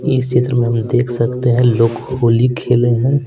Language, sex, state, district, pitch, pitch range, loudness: Hindi, male, Bihar, Patna, 120 Hz, 120-125 Hz, -15 LUFS